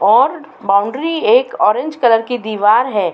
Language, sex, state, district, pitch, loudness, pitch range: Hindi, female, Uttar Pradesh, Muzaffarnagar, 245 Hz, -14 LUFS, 215-325 Hz